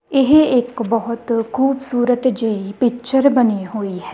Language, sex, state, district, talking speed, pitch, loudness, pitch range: Punjabi, female, Punjab, Kapurthala, 130 wpm, 245 Hz, -17 LUFS, 225-260 Hz